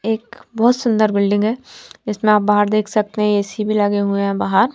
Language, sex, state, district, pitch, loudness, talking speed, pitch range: Hindi, female, Maharashtra, Gondia, 210 Hz, -17 LUFS, 215 wpm, 205-225 Hz